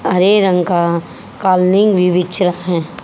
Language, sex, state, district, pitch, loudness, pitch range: Hindi, female, Haryana, Jhajjar, 180 Hz, -14 LUFS, 175-190 Hz